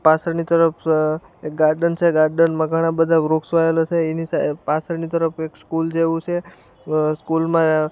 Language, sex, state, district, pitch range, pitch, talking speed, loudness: Gujarati, male, Gujarat, Gandhinagar, 155-165 Hz, 165 Hz, 160 wpm, -19 LUFS